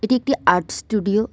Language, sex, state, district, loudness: Bengali, female, West Bengal, Cooch Behar, -20 LUFS